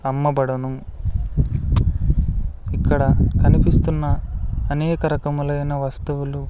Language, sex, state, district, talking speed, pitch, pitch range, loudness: Telugu, male, Andhra Pradesh, Sri Satya Sai, 55 wpm, 140 Hz, 130-145 Hz, -21 LUFS